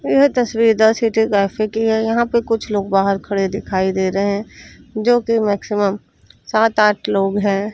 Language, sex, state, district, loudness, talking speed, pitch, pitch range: Hindi, female, Chandigarh, Chandigarh, -17 LUFS, 180 wpm, 210 Hz, 200-225 Hz